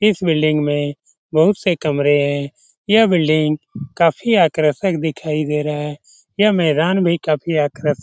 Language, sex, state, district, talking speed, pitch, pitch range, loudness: Hindi, male, Bihar, Lakhisarai, 155 wpm, 155 Hz, 150-175 Hz, -17 LUFS